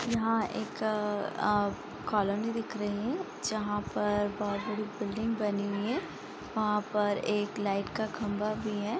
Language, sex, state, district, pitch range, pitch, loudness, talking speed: Hindi, female, Bihar, East Champaran, 205-220 Hz, 210 Hz, -32 LUFS, 155 wpm